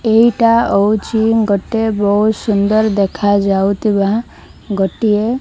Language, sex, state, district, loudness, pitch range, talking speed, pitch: Odia, female, Odisha, Malkangiri, -14 LUFS, 200-225 Hz, 90 wpm, 210 Hz